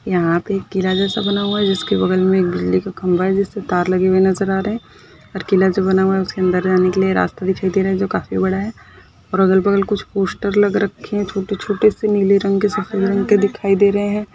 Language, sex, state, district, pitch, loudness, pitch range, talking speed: Hindi, female, Maharashtra, Chandrapur, 195 Hz, -17 LUFS, 185-200 Hz, 250 wpm